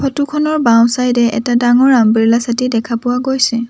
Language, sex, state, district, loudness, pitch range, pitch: Assamese, female, Assam, Sonitpur, -13 LUFS, 235-260 Hz, 240 Hz